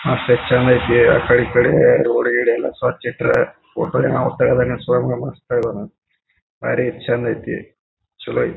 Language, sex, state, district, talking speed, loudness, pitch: Kannada, male, Karnataka, Bijapur, 180 wpm, -17 LUFS, 125 Hz